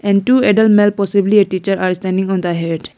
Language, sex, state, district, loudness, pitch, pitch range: English, female, Arunachal Pradesh, Lower Dibang Valley, -14 LUFS, 195 Hz, 185-205 Hz